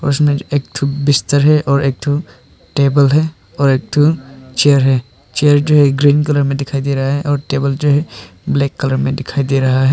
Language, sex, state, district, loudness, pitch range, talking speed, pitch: Hindi, male, Arunachal Pradesh, Papum Pare, -14 LUFS, 135-145 Hz, 215 wpm, 140 Hz